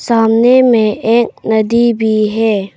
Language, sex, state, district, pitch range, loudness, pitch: Hindi, female, Arunachal Pradesh, Papum Pare, 220-235 Hz, -11 LUFS, 225 Hz